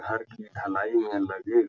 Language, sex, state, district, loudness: Hindi, male, Uttar Pradesh, Etah, -28 LUFS